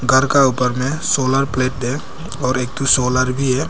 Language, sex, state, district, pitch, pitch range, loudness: Hindi, male, Arunachal Pradesh, Papum Pare, 130 Hz, 130-135 Hz, -17 LUFS